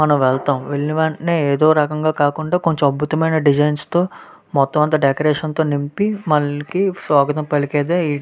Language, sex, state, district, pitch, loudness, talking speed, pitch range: Telugu, male, Andhra Pradesh, Visakhapatnam, 150 Hz, -17 LUFS, 145 wpm, 145-160 Hz